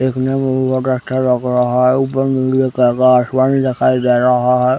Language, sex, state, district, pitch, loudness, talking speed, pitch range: Hindi, male, Chhattisgarh, Raigarh, 130 Hz, -14 LUFS, 210 wpm, 125-130 Hz